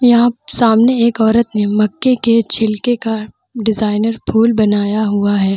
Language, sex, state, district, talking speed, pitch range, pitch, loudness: Hindi, female, Bihar, Vaishali, 150 wpm, 215-235 Hz, 225 Hz, -14 LUFS